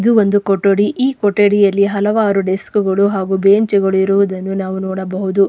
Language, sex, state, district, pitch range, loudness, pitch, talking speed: Kannada, female, Karnataka, Dakshina Kannada, 190-205 Hz, -14 LUFS, 200 Hz, 155 wpm